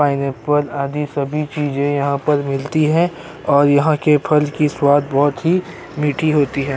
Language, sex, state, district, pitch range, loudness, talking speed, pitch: Hindi, male, Uttar Pradesh, Jyotiba Phule Nagar, 140-150 Hz, -17 LUFS, 170 wpm, 145 Hz